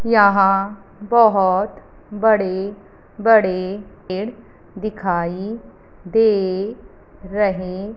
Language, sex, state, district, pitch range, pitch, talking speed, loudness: Hindi, female, Punjab, Fazilka, 190-215 Hz, 200 Hz, 60 wpm, -18 LUFS